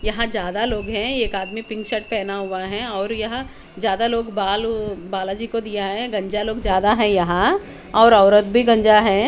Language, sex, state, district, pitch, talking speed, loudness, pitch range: Hindi, female, Haryana, Charkhi Dadri, 215 Hz, 195 wpm, -19 LUFS, 200-230 Hz